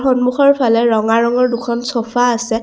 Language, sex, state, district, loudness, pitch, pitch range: Assamese, female, Assam, Kamrup Metropolitan, -14 LUFS, 240 Hz, 230-250 Hz